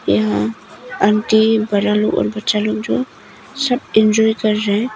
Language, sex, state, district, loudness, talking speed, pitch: Hindi, female, Arunachal Pradesh, Papum Pare, -16 LUFS, 145 wpm, 215 Hz